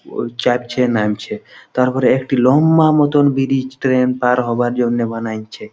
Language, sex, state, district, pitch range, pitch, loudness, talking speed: Bengali, male, West Bengal, Malda, 120-135 Hz, 125 Hz, -16 LUFS, 135 wpm